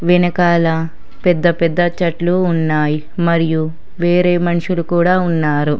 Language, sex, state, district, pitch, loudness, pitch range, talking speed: Telugu, female, Telangana, Hyderabad, 170 Hz, -15 LUFS, 160-175 Hz, 105 wpm